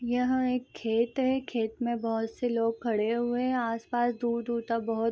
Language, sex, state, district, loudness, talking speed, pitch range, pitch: Hindi, female, Bihar, East Champaran, -29 LUFS, 200 wpm, 230-245 Hz, 235 Hz